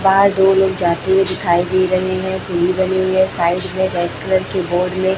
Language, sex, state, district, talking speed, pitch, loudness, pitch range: Hindi, female, Chhattisgarh, Raipur, 230 wpm, 185 Hz, -16 LUFS, 180-190 Hz